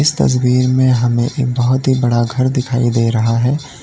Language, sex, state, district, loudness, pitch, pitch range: Hindi, male, Uttar Pradesh, Lalitpur, -14 LUFS, 125 Hz, 120-130 Hz